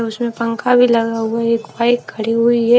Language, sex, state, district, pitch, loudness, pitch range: Hindi, female, Haryana, Rohtak, 230 Hz, -16 LUFS, 230-240 Hz